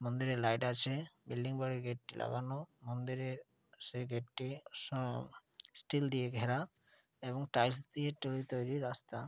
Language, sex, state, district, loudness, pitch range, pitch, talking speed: Bengali, male, West Bengal, Dakshin Dinajpur, -39 LUFS, 125-135 Hz, 130 Hz, 140 wpm